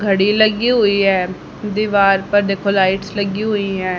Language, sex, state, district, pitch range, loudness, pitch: Hindi, female, Haryana, Charkhi Dadri, 195-210 Hz, -16 LUFS, 200 Hz